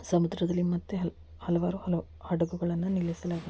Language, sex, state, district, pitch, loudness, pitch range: Kannada, female, Karnataka, Dakshina Kannada, 175 Hz, -31 LUFS, 170-175 Hz